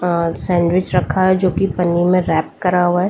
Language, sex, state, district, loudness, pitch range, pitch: Hindi, female, Delhi, New Delhi, -16 LUFS, 170-185 Hz, 180 Hz